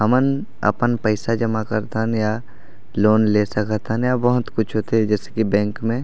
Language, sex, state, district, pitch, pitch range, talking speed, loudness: Chhattisgarhi, male, Chhattisgarh, Raigarh, 110 Hz, 105-115 Hz, 180 wpm, -20 LUFS